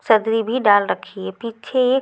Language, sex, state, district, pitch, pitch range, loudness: Hindi, female, Chhattisgarh, Raipur, 225 Hz, 210-250 Hz, -19 LUFS